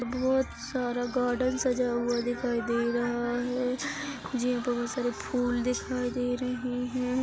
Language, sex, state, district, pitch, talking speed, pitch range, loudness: Hindi, female, Chhattisgarh, Korba, 245 Hz, 150 wpm, 245-250 Hz, -30 LUFS